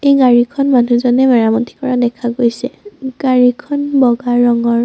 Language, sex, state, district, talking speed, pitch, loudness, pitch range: Assamese, female, Assam, Sonitpur, 110 wpm, 245 Hz, -13 LUFS, 240-265 Hz